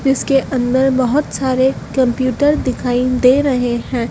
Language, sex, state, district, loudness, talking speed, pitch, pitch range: Hindi, female, Madhya Pradesh, Dhar, -15 LUFS, 130 wpm, 255 Hz, 250-270 Hz